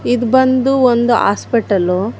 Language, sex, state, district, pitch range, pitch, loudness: Kannada, female, Karnataka, Bangalore, 205-255 Hz, 235 Hz, -13 LUFS